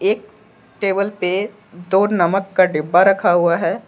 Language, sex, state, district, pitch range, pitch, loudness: Hindi, male, Jharkhand, Deoghar, 175-205 Hz, 195 Hz, -17 LUFS